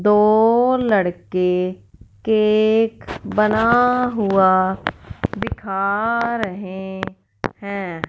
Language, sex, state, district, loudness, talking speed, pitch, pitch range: Hindi, female, Punjab, Fazilka, -19 LUFS, 60 wpm, 200 Hz, 185-220 Hz